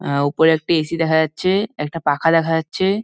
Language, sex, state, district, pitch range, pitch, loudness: Bengali, male, West Bengal, Dakshin Dinajpur, 155-170 Hz, 160 Hz, -18 LUFS